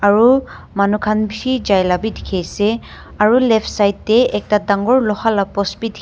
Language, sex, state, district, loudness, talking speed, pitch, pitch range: Nagamese, female, Nagaland, Dimapur, -16 LUFS, 190 wpm, 215 Hz, 200-225 Hz